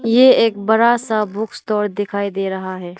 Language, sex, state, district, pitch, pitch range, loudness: Hindi, female, Arunachal Pradesh, Lower Dibang Valley, 210 Hz, 200-230 Hz, -17 LUFS